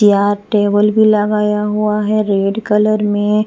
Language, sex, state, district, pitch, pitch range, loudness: Hindi, female, Punjab, Pathankot, 210 Hz, 205-215 Hz, -14 LUFS